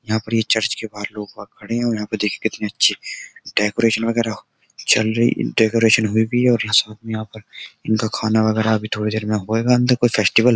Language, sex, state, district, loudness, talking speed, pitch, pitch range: Hindi, male, Uttar Pradesh, Jyotiba Phule Nagar, -19 LUFS, 235 wpm, 110 Hz, 110-115 Hz